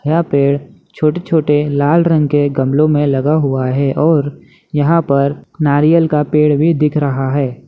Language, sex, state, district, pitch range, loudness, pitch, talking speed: Hindi, male, Bihar, Muzaffarpur, 140-155 Hz, -14 LUFS, 145 Hz, 165 wpm